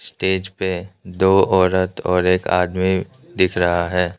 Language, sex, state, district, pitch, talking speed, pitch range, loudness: Hindi, male, Arunachal Pradesh, Lower Dibang Valley, 95 Hz, 145 wpm, 90-95 Hz, -18 LUFS